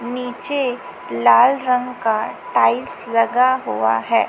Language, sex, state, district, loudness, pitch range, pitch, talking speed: Hindi, female, Chhattisgarh, Raipur, -18 LUFS, 230-255 Hz, 250 Hz, 110 wpm